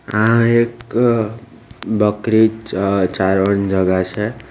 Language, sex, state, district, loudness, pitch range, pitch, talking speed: Gujarati, male, Gujarat, Valsad, -16 LUFS, 100-115 Hz, 110 Hz, 80 wpm